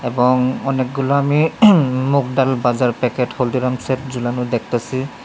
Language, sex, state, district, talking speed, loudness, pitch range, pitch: Bengali, male, Tripura, West Tripura, 105 wpm, -17 LUFS, 125-135 Hz, 130 Hz